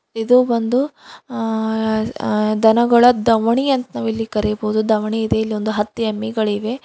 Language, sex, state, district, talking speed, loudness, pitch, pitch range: Kannada, female, Karnataka, Bidar, 115 wpm, -18 LUFS, 225 Hz, 215-235 Hz